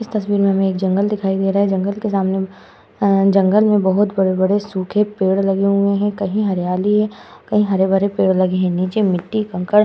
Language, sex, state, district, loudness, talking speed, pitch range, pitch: Hindi, female, Uttar Pradesh, Hamirpur, -17 LUFS, 215 wpm, 190-205 Hz, 195 Hz